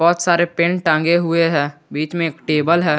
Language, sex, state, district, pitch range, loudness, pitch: Hindi, male, Jharkhand, Garhwa, 155-170 Hz, -17 LUFS, 165 Hz